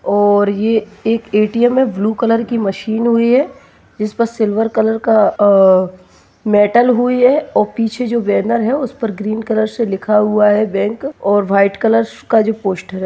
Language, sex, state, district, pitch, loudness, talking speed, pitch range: Hindi, male, Bihar, Bhagalpur, 220 Hz, -14 LUFS, 175 wpm, 205-230 Hz